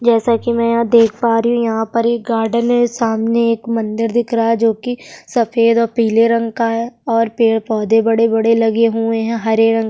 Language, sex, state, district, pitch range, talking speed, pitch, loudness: Hindi, female, Bihar, Kishanganj, 225-235 Hz, 220 wpm, 230 Hz, -15 LUFS